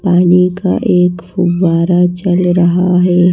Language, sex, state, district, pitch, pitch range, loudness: Hindi, female, Madhya Pradesh, Bhopal, 180 Hz, 175-180 Hz, -11 LUFS